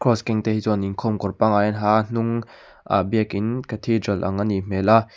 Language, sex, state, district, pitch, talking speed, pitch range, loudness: Mizo, male, Mizoram, Aizawl, 110 Hz, 220 wpm, 100-115 Hz, -22 LUFS